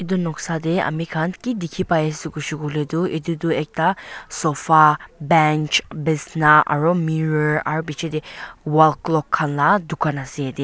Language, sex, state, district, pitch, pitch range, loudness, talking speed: Nagamese, female, Nagaland, Dimapur, 160 Hz, 150-165 Hz, -20 LUFS, 145 wpm